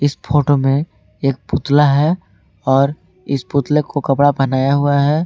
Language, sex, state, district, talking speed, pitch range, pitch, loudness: Hindi, male, Jharkhand, Garhwa, 150 wpm, 135-145 Hz, 140 Hz, -16 LUFS